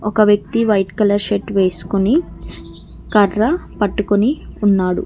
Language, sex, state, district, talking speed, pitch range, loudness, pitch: Telugu, female, Telangana, Mahabubabad, 105 wpm, 200-215 Hz, -16 LUFS, 205 Hz